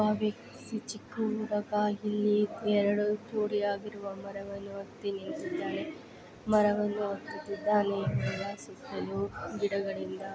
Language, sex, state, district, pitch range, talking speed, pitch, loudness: Kannada, female, Karnataka, Dharwad, 200-215 Hz, 100 wpm, 210 Hz, -32 LUFS